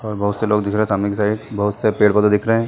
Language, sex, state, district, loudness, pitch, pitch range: Hindi, male, Chhattisgarh, Sarguja, -18 LUFS, 105 Hz, 105-110 Hz